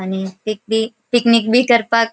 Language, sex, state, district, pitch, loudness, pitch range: Konkani, female, Goa, North and South Goa, 225 Hz, -16 LUFS, 215-235 Hz